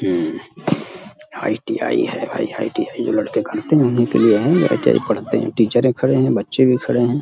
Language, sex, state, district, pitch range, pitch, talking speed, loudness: Hindi, male, Uttar Pradesh, Deoria, 120-150 Hz, 130 Hz, 200 wpm, -18 LUFS